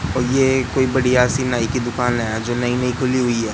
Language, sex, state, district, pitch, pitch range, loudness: Hindi, male, Madhya Pradesh, Katni, 125 Hz, 120-130 Hz, -18 LUFS